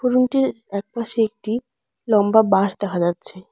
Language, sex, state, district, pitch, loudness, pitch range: Bengali, female, West Bengal, Alipurduar, 215 Hz, -20 LUFS, 200-235 Hz